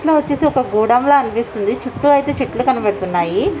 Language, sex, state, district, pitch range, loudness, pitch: Telugu, female, Andhra Pradesh, Visakhapatnam, 215-285 Hz, -16 LUFS, 260 Hz